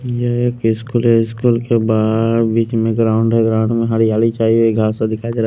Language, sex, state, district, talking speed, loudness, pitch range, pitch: Hindi, male, Punjab, Pathankot, 230 wpm, -15 LUFS, 110-115 Hz, 115 Hz